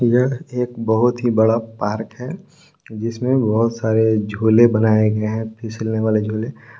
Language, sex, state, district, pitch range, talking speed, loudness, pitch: Hindi, male, Jharkhand, Palamu, 110-125 Hz, 150 wpm, -18 LUFS, 115 Hz